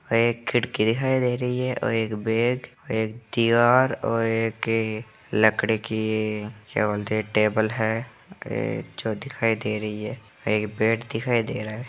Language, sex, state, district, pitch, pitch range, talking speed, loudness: Hindi, male, Bihar, Samastipur, 110 Hz, 110-120 Hz, 155 wpm, -24 LUFS